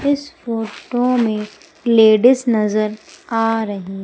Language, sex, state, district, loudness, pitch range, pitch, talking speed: Hindi, female, Madhya Pradesh, Umaria, -17 LUFS, 215-250 Hz, 225 Hz, 105 wpm